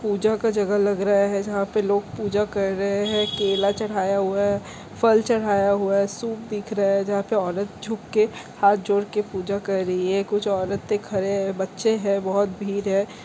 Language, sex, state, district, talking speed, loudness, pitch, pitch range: Hindi, female, Chhattisgarh, Rajnandgaon, 210 wpm, -23 LUFS, 200 Hz, 195-210 Hz